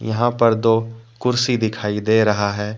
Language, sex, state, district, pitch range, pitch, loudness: Hindi, male, Jharkhand, Deoghar, 105-115 Hz, 110 Hz, -18 LUFS